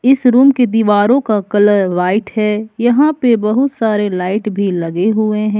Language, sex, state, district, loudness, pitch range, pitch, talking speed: Hindi, female, Jharkhand, Ranchi, -13 LUFS, 205-240 Hz, 215 Hz, 180 wpm